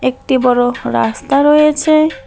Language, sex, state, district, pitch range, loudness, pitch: Bengali, male, West Bengal, Alipurduar, 245-300 Hz, -12 LUFS, 260 Hz